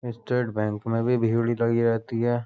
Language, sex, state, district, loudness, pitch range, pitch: Hindi, male, Uttar Pradesh, Jyotiba Phule Nagar, -25 LUFS, 115-120 Hz, 115 Hz